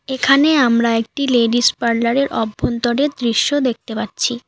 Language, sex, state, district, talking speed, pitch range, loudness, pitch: Bengali, female, West Bengal, Alipurduar, 135 wpm, 230-275 Hz, -16 LUFS, 240 Hz